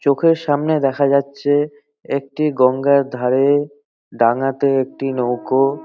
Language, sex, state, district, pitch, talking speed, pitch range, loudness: Bengali, male, West Bengal, North 24 Parganas, 140 Hz, 115 wpm, 135-145 Hz, -17 LUFS